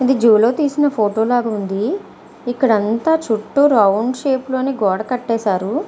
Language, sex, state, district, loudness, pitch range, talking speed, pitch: Telugu, female, Andhra Pradesh, Visakhapatnam, -17 LUFS, 215-265 Hz, 145 wpm, 235 Hz